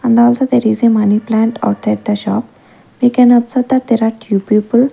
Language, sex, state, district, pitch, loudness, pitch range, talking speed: English, female, Maharashtra, Gondia, 230 Hz, -13 LUFS, 215-245 Hz, 205 wpm